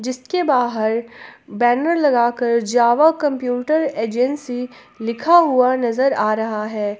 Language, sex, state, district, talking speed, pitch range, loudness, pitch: Hindi, female, Jharkhand, Palamu, 110 wpm, 230-280 Hz, -18 LUFS, 245 Hz